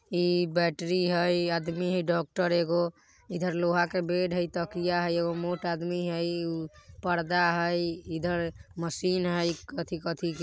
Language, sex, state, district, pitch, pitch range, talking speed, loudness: Bajjika, male, Bihar, Vaishali, 175 Hz, 170-175 Hz, 160 wpm, -29 LUFS